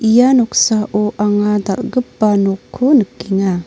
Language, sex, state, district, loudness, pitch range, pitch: Garo, female, Meghalaya, North Garo Hills, -14 LUFS, 195-240 Hz, 210 Hz